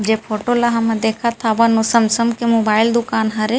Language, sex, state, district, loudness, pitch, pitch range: Chhattisgarhi, female, Chhattisgarh, Rajnandgaon, -16 LUFS, 225 Hz, 220-235 Hz